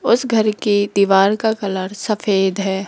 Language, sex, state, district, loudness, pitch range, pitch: Hindi, female, Rajasthan, Jaipur, -17 LUFS, 195-215 Hz, 205 Hz